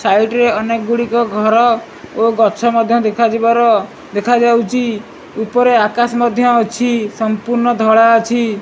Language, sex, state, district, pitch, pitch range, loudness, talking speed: Odia, male, Odisha, Malkangiri, 230 Hz, 220-240 Hz, -13 LUFS, 125 wpm